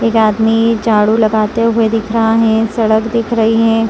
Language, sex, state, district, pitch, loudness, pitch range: Hindi, female, Chhattisgarh, Rajnandgaon, 225 Hz, -12 LUFS, 220-230 Hz